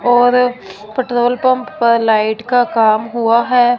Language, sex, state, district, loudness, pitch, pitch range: Hindi, female, Punjab, Fazilka, -14 LUFS, 240 Hz, 225-245 Hz